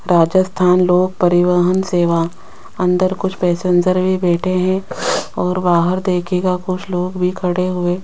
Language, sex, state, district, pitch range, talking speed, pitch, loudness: Hindi, female, Rajasthan, Jaipur, 180-185 Hz, 135 wpm, 180 Hz, -16 LUFS